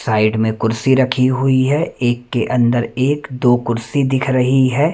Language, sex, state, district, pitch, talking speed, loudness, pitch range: Hindi, male, Madhya Pradesh, Umaria, 130 Hz, 180 wpm, -16 LUFS, 120-135 Hz